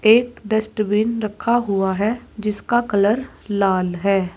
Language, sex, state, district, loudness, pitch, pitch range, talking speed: Hindi, female, Uttar Pradesh, Saharanpur, -20 LUFS, 210 Hz, 200-225 Hz, 125 wpm